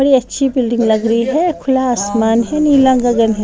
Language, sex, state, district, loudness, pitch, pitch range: Hindi, female, Bihar, West Champaran, -14 LUFS, 245 Hz, 230-270 Hz